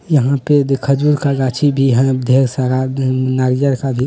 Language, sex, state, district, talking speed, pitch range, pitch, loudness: Hindi, male, Bihar, Bhagalpur, 190 wpm, 130-140 Hz, 135 Hz, -15 LUFS